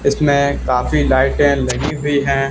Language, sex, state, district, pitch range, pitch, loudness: Hindi, male, Haryana, Charkhi Dadri, 140-145 Hz, 140 Hz, -16 LUFS